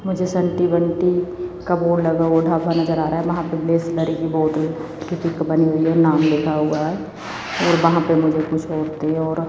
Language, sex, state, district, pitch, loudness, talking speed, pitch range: Hindi, female, Chandigarh, Chandigarh, 165 Hz, -19 LUFS, 200 wpm, 160-170 Hz